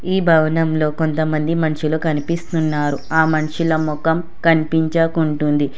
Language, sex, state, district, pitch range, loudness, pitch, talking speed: Telugu, female, Telangana, Hyderabad, 155-165 Hz, -18 LUFS, 160 Hz, 95 wpm